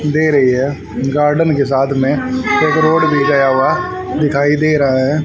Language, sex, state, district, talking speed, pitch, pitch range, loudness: Hindi, male, Haryana, Rohtak, 195 wpm, 150 Hz, 135-155 Hz, -13 LUFS